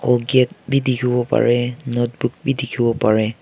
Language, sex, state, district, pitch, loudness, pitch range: Nagamese, male, Nagaland, Kohima, 125 Hz, -19 LUFS, 120-130 Hz